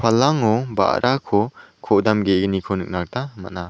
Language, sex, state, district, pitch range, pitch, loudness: Garo, male, Meghalaya, South Garo Hills, 95-120 Hz, 105 Hz, -20 LUFS